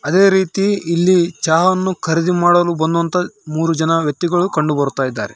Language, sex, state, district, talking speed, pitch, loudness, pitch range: Kannada, male, Karnataka, Raichur, 135 wpm, 170 Hz, -16 LUFS, 160-185 Hz